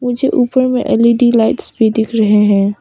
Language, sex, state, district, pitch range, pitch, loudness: Hindi, female, Arunachal Pradesh, Papum Pare, 220-250 Hz, 235 Hz, -12 LUFS